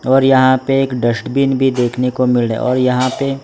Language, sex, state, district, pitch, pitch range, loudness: Hindi, male, Gujarat, Valsad, 130 Hz, 125-135 Hz, -14 LUFS